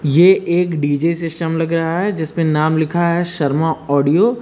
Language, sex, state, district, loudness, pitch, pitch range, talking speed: Hindi, male, Uttar Pradesh, Lucknow, -16 LUFS, 165 Hz, 155-170 Hz, 190 wpm